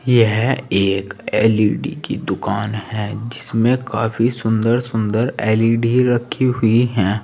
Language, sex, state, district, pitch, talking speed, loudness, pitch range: Hindi, male, Uttar Pradesh, Saharanpur, 110 Hz, 115 wpm, -18 LUFS, 105-120 Hz